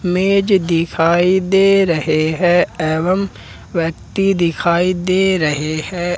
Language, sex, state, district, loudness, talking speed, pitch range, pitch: Hindi, male, Jharkhand, Ranchi, -15 LUFS, 105 wpm, 165-190 Hz, 175 Hz